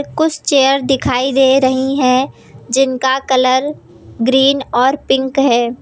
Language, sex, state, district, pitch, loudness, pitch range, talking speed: Hindi, female, Uttar Pradesh, Lucknow, 265 Hz, -13 LUFS, 255-270 Hz, 125 wpm